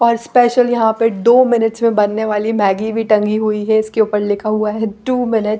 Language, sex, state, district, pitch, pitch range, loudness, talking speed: Hindi, female, Bihar, Patna, 220 Hz, 215-235 Hz, -15 LUFS, 225 wpm